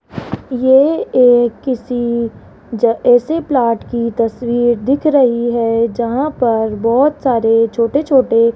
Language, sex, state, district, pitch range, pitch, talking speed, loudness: Hindi, female, Rajasthan, Jaipur, 230-260 Hz, 240 Hz, 125 wpm, -14 LUFS